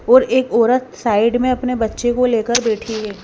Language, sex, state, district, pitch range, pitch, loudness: Hindi, female, Himachal Pradesh, Shimla, 225-250 Hz, 240 Hz, -16 LUFS